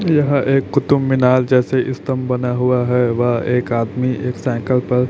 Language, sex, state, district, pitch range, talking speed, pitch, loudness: Hindi, male, Chhattisgarh, Raipur, 125-130 Hz, 175 wpm, 125 Hz, -17 LUFS